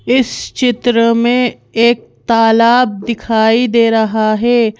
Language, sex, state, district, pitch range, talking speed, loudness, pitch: Hindi, female, Madhya Pradesh, Bhopal, 225-240 Hz, 115 wpm, -12 LUFS, 230 Hz